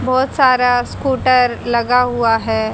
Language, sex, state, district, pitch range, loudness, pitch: Hindi, female, Haryana, Charkhi Dadri, 235-255 Hz, -15 LUFS, 250 Hz